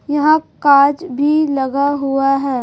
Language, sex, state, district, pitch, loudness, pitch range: Hindi, female, Chhattisgarh, Raipur, 285 Hz, -15 LUFS, 275-295 Hz